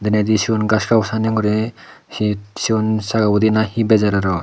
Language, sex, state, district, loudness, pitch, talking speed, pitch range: Chakma, male, Tripura, Dhalai, -17 LUFS, 110 Hz, 150 wpm, 105-110 Hz